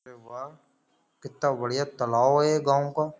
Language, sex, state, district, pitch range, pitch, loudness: Hindi, male, Uttar Pradesh, Jyotiba Phule Nagar, 125-145 Hz, 140 Hz, -25 LUFS